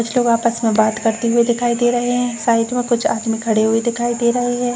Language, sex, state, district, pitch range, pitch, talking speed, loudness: Hindi, female, Uttar Pradesh, Jalaun, 230-245 Hz, 235 Hz, 265 wpm, -17 LUFS